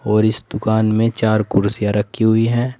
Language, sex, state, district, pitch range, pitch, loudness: Hindi, male, Uttar Pradesh, Saharanpur, 105-115 Hz, 110 Hz, -17 LUFS